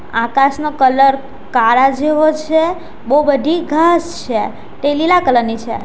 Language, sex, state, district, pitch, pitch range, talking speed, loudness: Gujarati, female, Gujarat, Valsad, 285 Hz, 265-320 Hz, 145 wpm, -14 LUFS